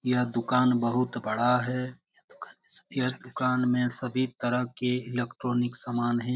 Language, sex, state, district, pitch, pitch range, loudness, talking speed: Hindi, male, Bihar, Jamui, 125 Hz, 120-125 Hz, -28 LUFS, 130 wpm